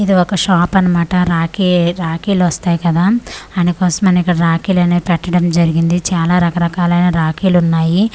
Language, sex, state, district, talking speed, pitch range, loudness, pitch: Telugu, female, Andhra Pradesh, Manyam, 130 wpm, 170-180 Hz, -14 LUFS, 175 Hz